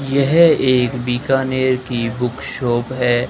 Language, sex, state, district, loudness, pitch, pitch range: Hindi, male, Rajasthan, Bikaner, -17 LUFS, 130 Hz, 120-135 Hz